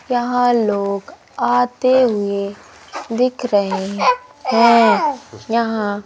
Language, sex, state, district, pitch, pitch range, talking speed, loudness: Hindi, male, Madhya Pradesh, Umaria, 235 Hz, 205-245 Hz, 80 wpm, -17 LUFS